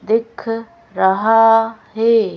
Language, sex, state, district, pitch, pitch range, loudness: Hindi, female, Madhya Pradesh, Bhopal, 225 Hz, 220-230 Hz, -15 LUFS